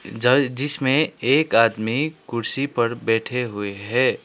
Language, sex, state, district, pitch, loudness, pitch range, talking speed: Hindi, male, Sikkim, Gangtok, 125 Hz, -20 LUFS, 115-140 Hz, 125 wpm